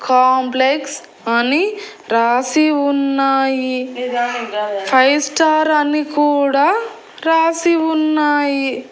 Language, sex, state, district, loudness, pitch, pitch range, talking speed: Telugu, female, Andhra Pradesh, Annamaya, -15 LUFS, 280 Hz, 255-310 Hz, 65 wpm